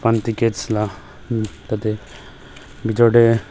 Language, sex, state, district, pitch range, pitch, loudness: Nagamese, male, Nagaland, Dimapur, 105-115 Hz, 110 Hz, -19 LUFS